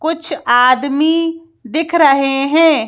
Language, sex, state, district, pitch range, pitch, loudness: Hindi, female, Madhya Pradesh, Bhopal, 275-325 Hz, 305 Hz, -13 LUFS